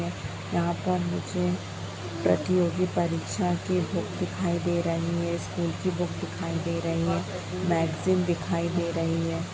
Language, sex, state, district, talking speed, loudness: Hindi, female, Bihar, Jamui, 150 wpm, -28 LUFS